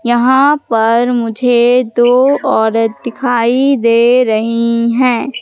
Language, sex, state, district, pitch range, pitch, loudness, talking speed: Hindi, female, Madhya Pradesh, Katni, 230-255 Hz, 240 Hz, -11 LUFS, 100 wpm